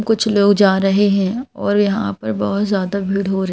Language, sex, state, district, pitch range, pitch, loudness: Hindi, female, Madhya Pradesh, Bhopal, 190-205 Hz, 200 Hz, -17 LUFS